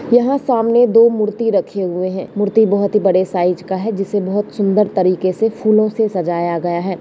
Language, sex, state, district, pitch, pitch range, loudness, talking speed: Hindi, male, Bihar, Bhagalpur, 205 Hz, 185-220 Hz, -16 LUFS, 195 wpm